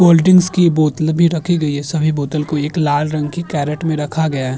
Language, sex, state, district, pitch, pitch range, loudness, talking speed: Hindi, male, Uttar Pradesh, Jyotiba Phule Nagar, 155 Hz, 150-170 Hz, -16 LUFS, 260 wpm